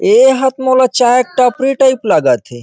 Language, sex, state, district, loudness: Chhattisgarhi, male, Chhattisgarh, Rajnandgaon, -11 LUFS